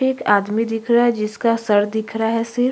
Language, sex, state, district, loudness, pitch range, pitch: Hindi, female, Chhattisgarh, Kabirdham, -19 LUFS, 215-235 Hz, 225 Hz